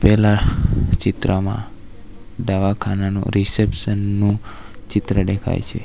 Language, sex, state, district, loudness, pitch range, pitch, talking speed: Gujarati, male, Gujarat, Valsad, -20 LUFS, 100-105 Hz, 100 Hz, 80 wpm